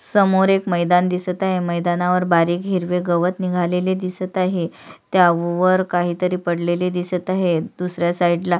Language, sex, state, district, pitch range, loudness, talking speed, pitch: Marathi, female, Maharashtra, Sindhudurg, 175-185 Hz, -19 LUFS, 140 wpm, 180 Hz